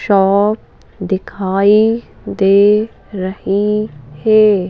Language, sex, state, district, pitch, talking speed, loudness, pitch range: Hindi, female, Madhya Pradesh, Bhopal, 200 Hz, 65 wpm, -14 LUFS, 195-215 Hz